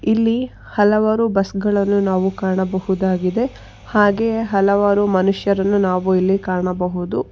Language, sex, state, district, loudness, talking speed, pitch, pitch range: Kannada, female, Karnataka, Bangalore, -18 LUFS, 100 wpm, 195 Hz, 190-210 Hz